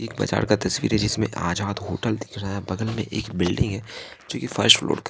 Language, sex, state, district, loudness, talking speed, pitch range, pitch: Hindi, male, Bihar, Katihar, -23 LUFS, 245 wpm, 95-110 Hz, 105 Hz